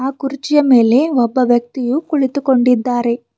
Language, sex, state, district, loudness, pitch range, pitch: Kannada, female, Karnataka, Bidar, -14 LUFS, 245-275 Hz, 255 Hz